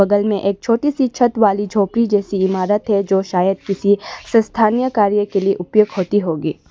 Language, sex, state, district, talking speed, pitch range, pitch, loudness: Hindi, female, Arunachal Pradesh, Lower Dibang Valley, 190 wpm, 195-220 Hz, 205 Hz, -17 LUFS